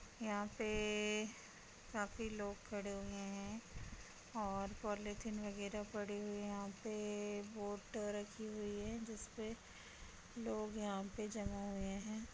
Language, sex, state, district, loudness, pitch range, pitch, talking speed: Hindi, female, Bihar, Vaishali, -45 LUFS, 200-215 Hz, 205 Hz, 125 wpm